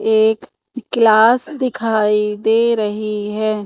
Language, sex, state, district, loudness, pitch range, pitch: Hindi, female, Madhya Pradesh, Umaria, -16 LUFS, 210-230 Hz, 220 Hz